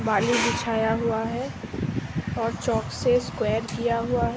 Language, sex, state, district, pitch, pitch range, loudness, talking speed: Hindi, female, Uttar Pradesh, Budaun, 230 Hz, 225-245 Hz, -25 LUFS, 165 wpm